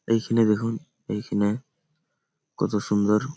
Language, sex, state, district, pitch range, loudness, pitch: Bengali, male, West Bengal, Malda, 105-130 Hz, -25 LUFS, 110 Hz